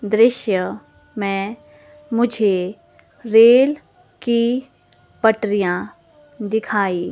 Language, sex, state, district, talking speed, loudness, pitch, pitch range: Hindi, female, Himachal Pradesh, Shimla, 60 wpm, -18 LUFS, 220 Hz, 205-250 Hz